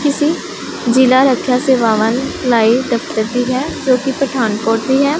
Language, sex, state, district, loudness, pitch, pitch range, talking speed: Hindi, female, Punjab, Pathankot, -14 LUFS, 255 Hz, 235-270 Hz, 80 wpm